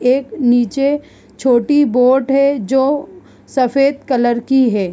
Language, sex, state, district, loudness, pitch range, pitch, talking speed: Hindi, female, Bihar, East Champaran, -15 LUFS, 245-275 Hz, 265 Hz, 135 wpm